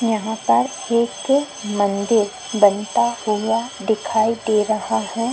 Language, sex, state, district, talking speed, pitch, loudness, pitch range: Hindi, female, Chhattisgarh, Kabirdham, 110 wpm, 220 Hz, -19 LUFS, 205-230 Hz